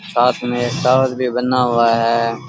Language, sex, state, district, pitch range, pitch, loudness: Rajasthani, male, Rajasthan, Churu, 120-125 Hz, 125 Hz, -16 LUFS